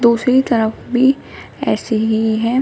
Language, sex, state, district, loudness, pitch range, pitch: Hindi, female, Uttar Pradesh, Shamli, -16 LUFS, 220-255 Hz, 235 Hz